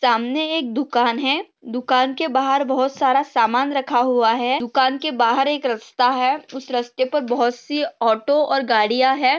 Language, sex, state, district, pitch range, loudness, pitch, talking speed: Hindi, female, Maharashtra, Sindhudurg, 245-280 Hz, -19 LUFS, 265 Hz, 180 wpm